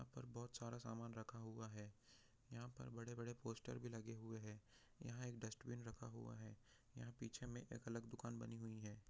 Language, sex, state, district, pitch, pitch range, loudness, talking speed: Hindi, male, Bihar, Jahanabad, 115 Hz, 110-120 Hz, -54 LUFS, 230 wpm